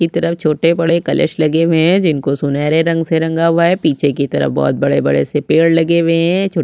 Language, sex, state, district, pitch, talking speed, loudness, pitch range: Hindi, female, Chhattisgarh, Sukma, 165 Hz, 260 wpm, -14 LUFS, 155-170 Hz